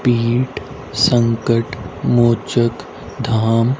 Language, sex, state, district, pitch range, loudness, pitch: Hindi, male, Haryana, Rohtak, 115-125 Hz, -17 LUFS, 120 Hz